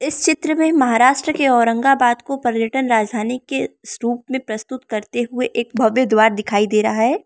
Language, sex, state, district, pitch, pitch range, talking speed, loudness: Hindi, female, Arunachal Pradesh, Lower Dibang Valley, 240 Hz, 225-265 Hz, 180 wpm, -17 LUFS